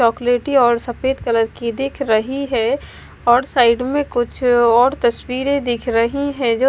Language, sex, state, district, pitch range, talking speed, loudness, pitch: Hindi, female, Bihar, West Champaran, 235-270 Hz, 160 wpm, -17 LUFS, 245 Hz